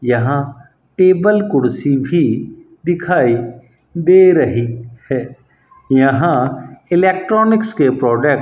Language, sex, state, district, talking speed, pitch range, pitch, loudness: Hindi, male, Rajasthan, Bikaner, 95 wpm, 125-185 Hz, 140 Hz, -14 LUFS